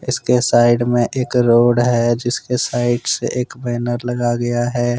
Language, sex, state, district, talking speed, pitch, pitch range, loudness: Hindi, male, Jharkhand, Deoghar, 180 wpm, 120 Hz, 120-125 Hz, -17 LUFS